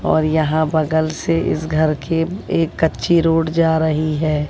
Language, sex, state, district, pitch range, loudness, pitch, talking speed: Hindi, female, Bihar, West Champaran, 155-165 Hz, -18 LUFS, 160 Hz, 175 wpm